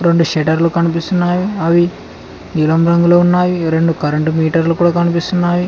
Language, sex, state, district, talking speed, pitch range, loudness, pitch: Telugu, male, Telangana, Mahabubabad, 125 wpm, 165-175 Hz, -14 LUFS, 170 Hz